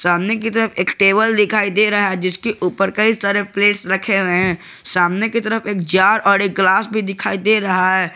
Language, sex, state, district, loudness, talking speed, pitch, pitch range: Hindi, male, Jharkhand, Garhwa, -16 LUFS, 220 wpm, 200 Hz, 185-215 Hz